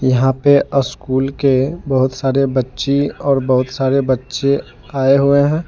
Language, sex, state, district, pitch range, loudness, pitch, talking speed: Hindi, male, Jharkhand, Deoghar, 130-140 Hz, -16 LUFS, 135 Hz, 150 wpm